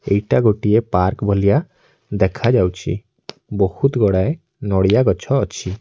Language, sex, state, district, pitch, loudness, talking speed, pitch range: Odia, male, Odisha, Nuapada, 100 Hz, -18 LUFS, 105 wpm, 95-120 Hz